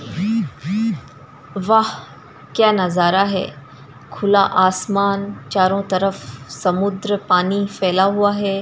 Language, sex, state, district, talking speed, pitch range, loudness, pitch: Hindi, female, Bihar, Darbhanga, 90 wpm, 175-200 Hz, -18 LUFS, 195 Hz